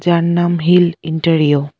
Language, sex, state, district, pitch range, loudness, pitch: Bengali, female, West Bengal, Alipurduar, 160-175 Hz, -14 LUFS, 170 Hz